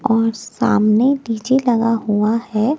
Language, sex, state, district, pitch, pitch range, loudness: Hindi, female, Delhi, New Delhi, 225 Hz, 215-240 Hz, -17 LUFS